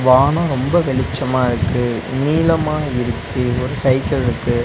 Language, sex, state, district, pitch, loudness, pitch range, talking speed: Tamil, male, Tamil Nadu, Nilgiris, 130 Hz, -17 LUFS, 120-140 Hz, 105 wpm